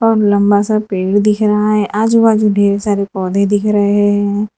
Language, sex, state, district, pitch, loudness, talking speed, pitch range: Hindi, female, Gujarat, Valsad, 205 Hz, -13 LUFS, 185 wpm, 205-215 Hz